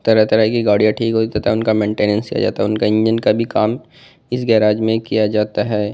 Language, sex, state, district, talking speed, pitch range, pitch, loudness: Hindi, male, Delhi, New Delhi, 220 wpm, 105-115 Hz, 110 Hz, -16 LUFS